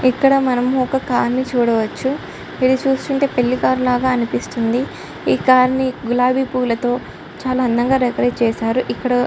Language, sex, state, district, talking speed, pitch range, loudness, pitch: Telugu, female, Andhra Pradesh, Chittoor, 135 wpm, 245-260 Hz, -17 LUFS, 255 Hz